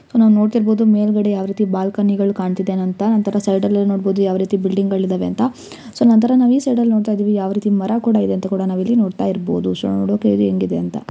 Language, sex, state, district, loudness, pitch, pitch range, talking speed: Kannada, female, Karnataka, Gulbarga, -17 LUFS, 200 Hz, 190-215 Hz, 205 wpm